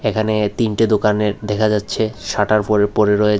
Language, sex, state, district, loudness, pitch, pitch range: Bengali, male, Tripura, West Tripura, -17 LUFS, 105 Hz, 105-110 Hz